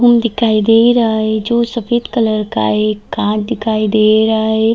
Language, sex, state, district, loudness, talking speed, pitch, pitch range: Hindi, female, Bihar, Darbhanga, -13 LUFS, 190 wpm, 220 Hz, 215-235 Hz